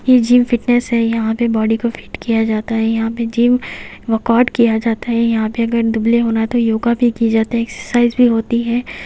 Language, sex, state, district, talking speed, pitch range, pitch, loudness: Hindi, female, Haryana, Jhajjar, 240 wpm, 225-240 Hz, 230 Hz, -15 LUFS